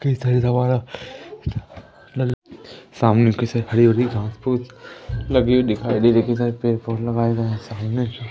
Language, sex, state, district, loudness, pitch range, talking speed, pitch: Hindi, male, Madhya Pradesh, Umaria, -20 LUFS, 115-125 Hz, 150 wpm, 120 Hz